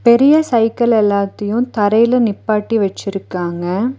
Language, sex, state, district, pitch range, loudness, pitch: Tamil, female, Tamil Nadu, Nilgiris, 200-235 Hz, -15 LUFS, 215 Hz